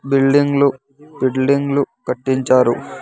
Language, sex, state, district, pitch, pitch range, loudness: Telugu, male, Andhra Pradesh, Sri Satya Sai, 135 Hz, 130-140 Hz, -16 LUFS